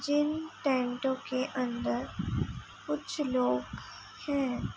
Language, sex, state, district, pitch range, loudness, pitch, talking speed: Hindi, female, Uttar Pradesh, Budaun, 245-290 Hz, -32 LUFS, 265 Hz, 90 wpm